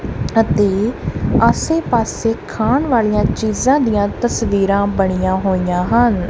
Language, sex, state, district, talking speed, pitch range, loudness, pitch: Punjabi, female, Punjab, Kapurthala, 105 wpm, 195-235 Hz, -16 LUFS, 210 Hz